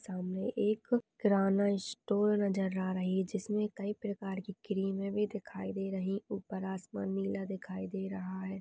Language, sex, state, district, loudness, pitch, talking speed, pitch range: Hindi, female, West Bengal, Dakshin Dinajpur, -35 LUFS, 195 Hz, 165 wpm, 190-210 Hz